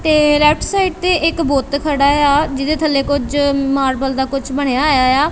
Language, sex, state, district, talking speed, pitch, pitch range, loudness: Punjabi, female, Punjab, Kapurthala, 215 wpm, 285 Hz, 275-305 Hz, -15 LUFS